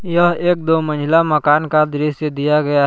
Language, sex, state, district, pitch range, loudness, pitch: Hindi, male, Jharkhand, Palamu, 150-165 Hz, -16 LUFS, 150 Hz